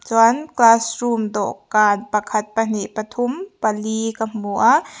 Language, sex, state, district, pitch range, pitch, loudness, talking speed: Mizo, female, Mizoram, Aizawl, 215-230 Hz, 220 Hz, -19 LUFS, 130 wpm